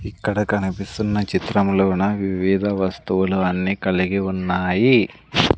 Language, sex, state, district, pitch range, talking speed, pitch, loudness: Telugu, male, Andhra Pradesh, Sri Satya Sai, 95-100 Hz, 85 wpm, 95 Hz, -20 LUFS